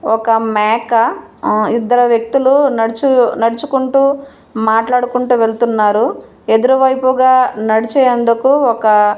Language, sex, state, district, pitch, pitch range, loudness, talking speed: Telugu, female, Andhra Pradesh, Manyam, 235 Hz, 225-260 Hz, -13 LUFS, 90 wpm